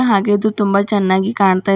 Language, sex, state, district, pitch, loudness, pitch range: Kannada, female, Karnataka, Bidar, 200 Hz, -15 LUFS, 195-205 Hz